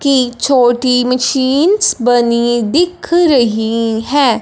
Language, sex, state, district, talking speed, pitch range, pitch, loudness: Hindi, male, Punjab, Fazilka, 95 wpm, 240-280 Hz, 250 Hz, -12 LUFS